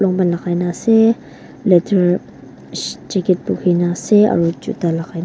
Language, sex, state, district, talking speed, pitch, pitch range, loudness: Nagamese, female, Nagaland, Kohima, 150 wpm, 180 Hz, 175-205 Hz, -16 LUFS